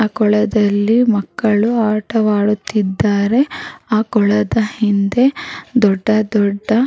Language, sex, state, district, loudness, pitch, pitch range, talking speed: Kannada, female, Karnataka, Raichur, -15 LUFS, 215 Hz, 205-225 Hz, 95 wpm